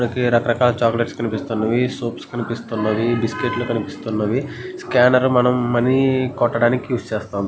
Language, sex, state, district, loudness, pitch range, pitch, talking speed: Telugu, male, Andhra Pradesh, Guntur, -19 LUFS, 115-125 Hz, 120 Hz, 105 wpm